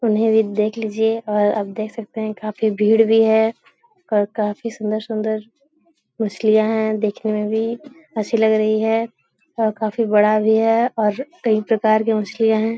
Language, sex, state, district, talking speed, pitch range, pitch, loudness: Hindi, female, Bihar, Jahanabad, 165 wpm, 215-225 Hz, 220 Hz, -19 LUFS